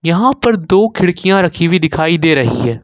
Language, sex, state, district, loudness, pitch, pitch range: Hindi, male, Jharkhand, Ranchi, -12 LUFS, 175 Hz, 160-195 Hz